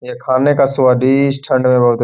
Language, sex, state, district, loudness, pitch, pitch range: Hindi, male, Bihar, Gaya, -13 LUFS, 130 Hz, 125-135 Hz